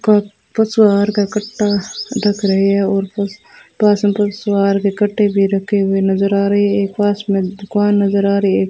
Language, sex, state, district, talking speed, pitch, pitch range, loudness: Hindi, female, Rajasthan, Bikaner, 205 wpm, 200 Hz, 200-205 Hz, -15 LUFS